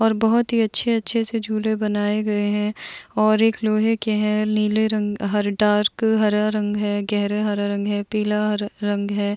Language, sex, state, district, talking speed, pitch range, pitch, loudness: Hindi, female, Uttar Pradesh, Muzaffarnagar, 165 wpm, 205-220 Hz, 210 Hz, -20 LUFS